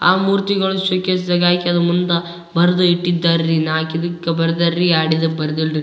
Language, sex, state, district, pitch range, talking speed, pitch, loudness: Kannada, male, Karnataka, Raichur, 165-180 Hz, 165 wpm, 175 Hz, -17 LUFS